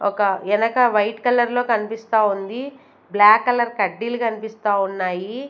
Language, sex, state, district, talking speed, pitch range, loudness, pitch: Telugu, female, Andhra Pradesh, Sri Satya Sai, 120 wpm, 205-240 Hz, -19 LUFS, 220 Hz